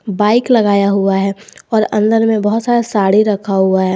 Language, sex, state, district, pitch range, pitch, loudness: Hindi, male, Jharkhand, Garhwa, 195-220 Hz, 210 Hz, -13 LUFS